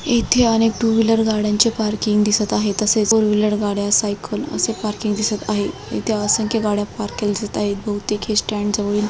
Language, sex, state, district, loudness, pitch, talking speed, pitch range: Marathi, female, Maharashtra, Dhule, -19 LUFS, 210 Hz, 190 wpm, 210-220 Hz